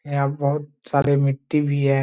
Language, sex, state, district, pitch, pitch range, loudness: Hindi, male, Bihar, Muzaffarpur, 140 Hz, 140-145 Hz, -22 LUFS